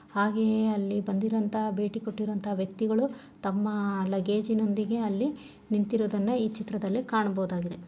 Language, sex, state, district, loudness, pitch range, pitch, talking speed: Kannada, female, Karnataka, Shimoga, -29 LUFS, 200-220 Hz, 215 Hz, 130 wpm